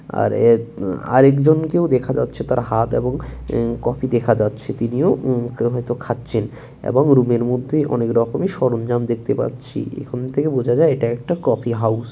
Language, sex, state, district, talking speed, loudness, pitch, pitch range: Bengali, male, West Bengal, Dakshin Dinajpur, 165 wpm, -19 LUFS, 125 Hz, 115-135 Hz